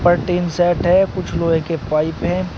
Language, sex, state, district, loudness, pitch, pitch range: Hindi, male, Uttar Pradesh, Shamli, -18 LUFS, 175 Hz, 165-180 Hz